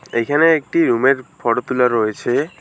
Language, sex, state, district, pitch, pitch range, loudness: Bengali, male, West Bengal, Alipurduar, 130 Hz, 120-165 Hz, -17 LUFS